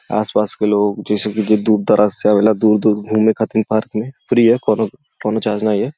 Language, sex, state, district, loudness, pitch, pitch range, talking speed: Bhojpuri, male, Uttar Pradesh, Gorakhpur, -16 LUFS, 110 Hz, 105-110 Hz, 220 wpm